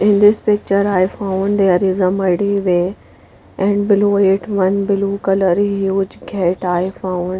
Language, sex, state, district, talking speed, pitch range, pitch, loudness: English, female, Punjab, Pathankot, 160 wpm, 185-200 Hz, 195 Hz, -16 LUFS